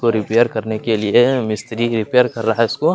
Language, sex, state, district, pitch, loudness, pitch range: Hindi, male, Chhattisgarh, Kabirdham, 115 Hz, -17 LUFS, 110-120 Hz